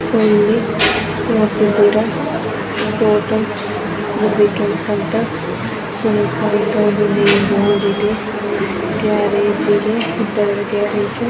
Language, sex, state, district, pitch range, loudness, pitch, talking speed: Kannada, female, Karnataka, Gulbarga, 205-215 Hz, -16 LUFS, 210 Hz, 80 wpm